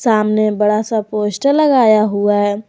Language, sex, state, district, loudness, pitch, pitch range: Hindi, female, Jharkhand, Garhwa, -14 LUFS, 215 Hz, 210-225 Hz